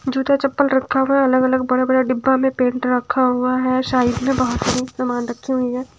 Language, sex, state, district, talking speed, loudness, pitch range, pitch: Hindi, female, Bihar, Katihar, 230 wpm, -18 LUFS, 250-265 Hz, 255 Hz